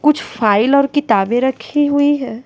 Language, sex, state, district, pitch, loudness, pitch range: Hindi, female, Bihar, West Champaran, 265 Hz, -15 LUFS, 230-290 Hz